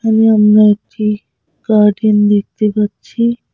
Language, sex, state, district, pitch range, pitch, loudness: Bengali, female, West Bengal, Cooch Behar, 205-220 Hz, 210 Hz, -12 LUFS